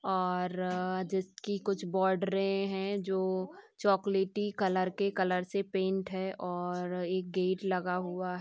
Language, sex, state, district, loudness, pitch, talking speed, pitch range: Hindi, female, Chhattisgarh, Sukma, -33 LUFS, 190 Hz, 130 wpm, 185-195 Hz